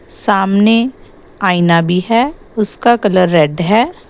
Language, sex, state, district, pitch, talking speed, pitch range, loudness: Hindi, female, Assam, Sonitpur, 205 Hz, 115 wpm, 180-235 Hz, -13 LUFS